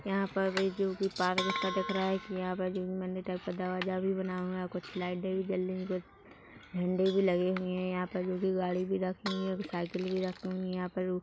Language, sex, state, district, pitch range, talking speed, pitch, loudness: Hindi, female, Chhattisgarh, Rajnandgaon, 185-190 Hz, 250 wpm, 185 Hz, -33 LUFS